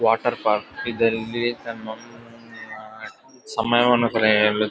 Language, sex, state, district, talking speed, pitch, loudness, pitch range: Kannada, male, Karnataka, Dakshina Kannada, 75 wpm, 115 Hz, -21 LUFS, 110-120 Hz